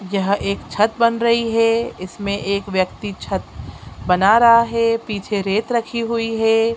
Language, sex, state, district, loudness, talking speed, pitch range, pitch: Hindi, female, Chhattisgarh, Raigarh, -18 LUFS, 150 wpm, 200-230 Hz, 220 Hz